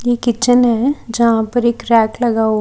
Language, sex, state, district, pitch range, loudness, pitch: Hindi, female, Haryana, Rohtak, 225-245 Hz, -14 LUFS, 235 Hz